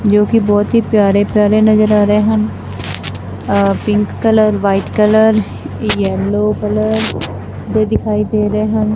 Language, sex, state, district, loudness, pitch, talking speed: Punjabi, female, Punjab, Fazilka, -13 LUFS, 205 Hz, 140 wpm